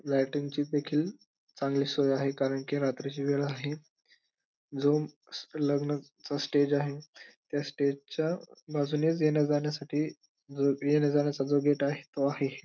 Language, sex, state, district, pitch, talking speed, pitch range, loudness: Marathi, male, Maharashtra, Dhule, 145 Hz, 140 wpm, 140-150 Hz, -30 LUFS